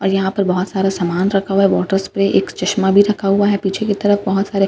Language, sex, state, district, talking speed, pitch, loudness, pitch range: Hindi, female, Bihar, Katihar, 280 wpm, 195 Hz, -16 LUFS, 190-200 Hz